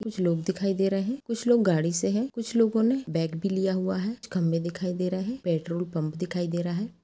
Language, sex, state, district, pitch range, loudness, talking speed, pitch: Hindi, female, Chhattisgarh, Sukma, 175-220 Hz, -27 LUFS, 265 wpm, 190 Hz